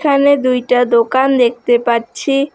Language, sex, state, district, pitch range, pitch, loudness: Bengali, female, West Bengal, Alipurduar, 240-275 Hz, 250 Hz, -13 LUFS